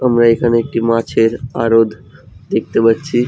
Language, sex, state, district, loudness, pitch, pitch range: Bengali, male, West Bengal, Jhargram, -14 LUFS, 115 Hz, 115-120 Hz